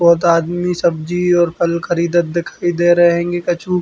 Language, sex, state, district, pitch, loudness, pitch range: Bundeli, male, Uttar Pradesh, Hamirpur, 175 Hz, -15 LUFS, 170-175 Hz